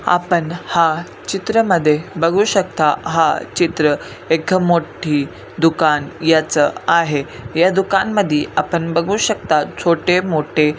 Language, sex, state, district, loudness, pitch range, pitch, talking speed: Marathi, male, Maharashtra, Pune, -16 LUFS, 155-180 Hz, 165 Hz, 115 wpm